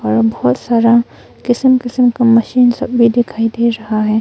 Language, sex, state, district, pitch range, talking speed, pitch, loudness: Hindi, female, Arunachal Pradesh, Longding, 220-245 Hz, 185 wpm, 235 Hz, -13 LUFS